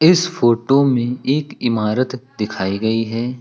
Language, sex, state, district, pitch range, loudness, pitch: Hindi, male, Uttar Pradesh, Lucknow, 115-135 Hz, -18 LUFS, 120 Hz